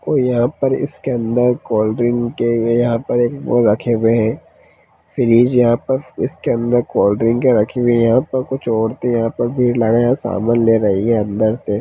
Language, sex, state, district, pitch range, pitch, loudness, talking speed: Hindi, male, Bihar, Begusarai, 115-125 Hz, 120 Hz, -16 LUFS, 195 wpm